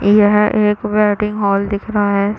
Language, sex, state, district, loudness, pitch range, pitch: Hindi, female, Chhattisgarh, Bilaspur, -15 LUFS, 205-210 Hz, 210 Hz